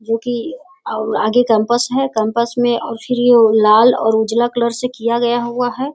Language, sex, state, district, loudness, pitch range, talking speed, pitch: Hindi, female, Bihar, Sitamarhi, -15 LUFS, 225-245 Hz, 200 wpm, 240 Hz